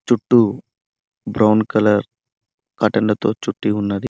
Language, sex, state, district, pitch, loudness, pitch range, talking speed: Telugu, male, Telangana, Mahabubabad, 110 Hz, -17 LUFS, 105-120 Hz, 90 wpm